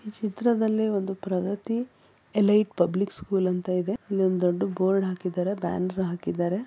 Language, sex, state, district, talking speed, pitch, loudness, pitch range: Kannada, female, Karnataka, Mysore, 145 wpm, 195 Hz, -26 LUFS, 180-210 Hz